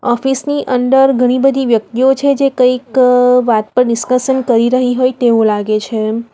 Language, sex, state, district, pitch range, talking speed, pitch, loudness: Gujarati, female, Gujarat, Valsad, 235-265 Hz, 170 wpm, 250 Hz, -12 LUFS